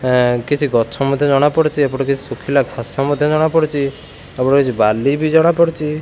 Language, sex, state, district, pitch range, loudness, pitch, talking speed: Odia, male, Odisha, Khordha, 130-150 Hz, -16 LUFS, 140 Hz, 190 wpm